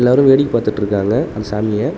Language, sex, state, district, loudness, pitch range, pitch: Tamil, male, Tamil Nadu, Namakkal, -15 LUFS, 105-125 Hz, 110 Hz